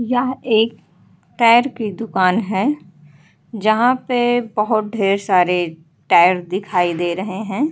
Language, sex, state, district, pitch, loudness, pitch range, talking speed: Hindi, female, Uttar Pradesh, Hamirpur, 210 Hz, -17 LUFS, 180-235 Hz, 125 wpm